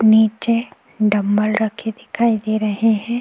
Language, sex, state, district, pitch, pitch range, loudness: Hindi, female, Chhattisgarh, Kabirdham, 220 Hz, 215-225 Hz, -18 LUFS